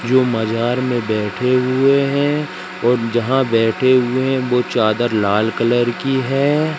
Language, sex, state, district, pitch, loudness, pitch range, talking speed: Hindi, female, Madhya Pradesh, Katni, 125 Hz, -17 LUFS, 115-135 Hz, 150 wpm